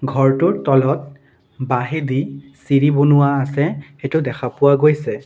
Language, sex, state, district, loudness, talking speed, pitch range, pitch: Assamese, male, Assam, Sonitpur, -17 LUFS, 115 wpm, 135-145 Hz, 140 Hz